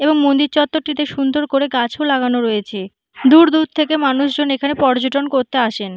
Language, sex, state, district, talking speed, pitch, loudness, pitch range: Bengali, female, West Bengal, Malda, 170 wpm, 280 Hz, -16 LUFS, 255-295 Hz